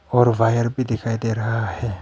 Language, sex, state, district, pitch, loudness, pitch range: Hindi, male, Arunachal Pradesh, Papum Pare, 115 Hz, -21 LUFS, 115-120 Hz